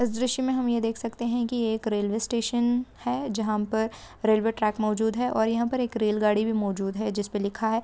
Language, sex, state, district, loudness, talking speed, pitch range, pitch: Hindi, female, Andhra Pradesh, Guntur, -26 LUFS, 250 wpm, 215-240 Hz, 225 Hz